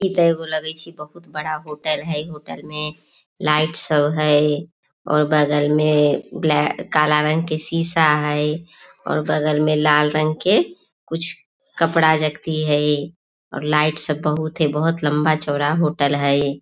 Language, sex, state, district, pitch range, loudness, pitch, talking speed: Maithili, female, Bihar, Samastipur, 150-155 Hz, -19 LUFS, 150 Hz, 155 wpm